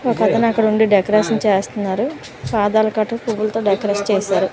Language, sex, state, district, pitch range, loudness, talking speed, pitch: Telugu, female, Andhra Pradesh, Manyam, 205-225 Hz, -17 LUFS, 120 wpm, 215 Hz